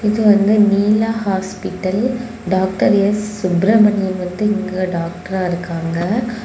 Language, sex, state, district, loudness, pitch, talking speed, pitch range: Tamil, female, Tamil Nadu, Kanyakumari, -17 LUFS, 200 Hz, 100 wpm, 185-210 Hz